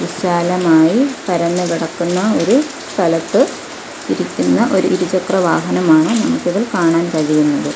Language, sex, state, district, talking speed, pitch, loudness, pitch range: Malayalam, female, Kerala, Kollam, 100 wpm, 175 Hz, -15 LUFS, 165-195 Hz